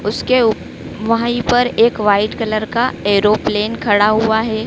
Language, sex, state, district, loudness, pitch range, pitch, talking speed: Hindi, female, Madhya Pradesh, Dhar, -15 LUFS, 210-235 Hz, 220 Hz, 155 wpm